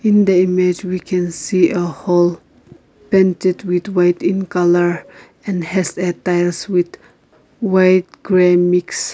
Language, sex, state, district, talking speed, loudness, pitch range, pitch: English, female, Nagaland, Kohima, 140 wpm, -16 LUFS, 175-185 Hz, 180 Hz